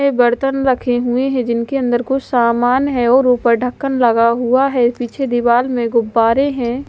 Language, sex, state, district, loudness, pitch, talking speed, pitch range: Hindi, female, Haryana, Charkhi Dadri, -15 LUFS, 245 Hz, 175 wpm, 240-265 Hz